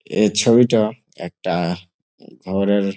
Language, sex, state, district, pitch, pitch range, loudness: Bengali, male, West Bengal, Jalpaiguri, 100 Hz, 95-110 Hz, -18 LUFS